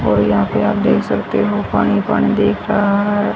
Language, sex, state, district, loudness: Hindi, female, Haryana, Rohtak, -15 LUFS